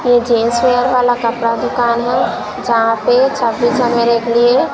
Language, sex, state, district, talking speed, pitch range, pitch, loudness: Hindi, female, Chhattisgarh, Raipur, 165 wpm, 235-245 Hz, 240 Hz, -14 LUFS